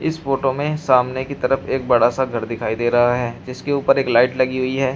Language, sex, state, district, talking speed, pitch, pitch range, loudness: Hindi, male, Uttar Pradesh, Shamli, 255 wpm, 130 Hz, 120-135 Hz, -19 LUFS